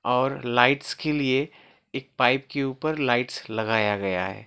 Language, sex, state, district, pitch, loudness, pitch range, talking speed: Hindi, male, West Bengal, Alipurduar, 125 Hz, -24 LUFS, 110-135 Hz, 160 wpm